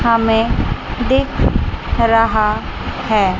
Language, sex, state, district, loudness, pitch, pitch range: Hindi, female, Chandigarh, Chandigarh, -16 LUFS, 225 Hz, 225-230 Hz